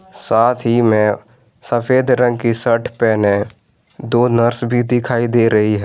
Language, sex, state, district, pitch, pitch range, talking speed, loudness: Hindi, male, Jharkhand, Garhwa, 120 Hz, 110-120 Hz, 155 wpm, -15 LUFS